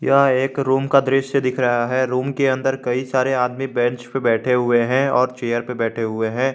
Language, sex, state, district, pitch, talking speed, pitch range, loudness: Hindi, male, Jharkhand, Garhwa, 130 Hz, 230 wpm, 120-135 Hz, -19 LUFS